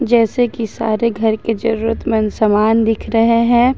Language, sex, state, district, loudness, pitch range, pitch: Hindi, female, Jharkhand, Ranchi, -15 LUFS, 220-230 Hz, 225 Hz